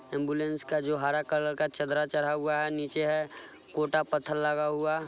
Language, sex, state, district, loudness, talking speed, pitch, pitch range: Hindi, male, Bihar, Sitamarhi, -30 LUFS, 200 wpm, 150 Hz, 150-155 Hz